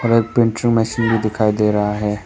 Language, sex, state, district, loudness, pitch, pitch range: Hindi, male, Arunachal Pradesh, Papum Pare, -17 LUFS, 110 Hz, 105-115 Hz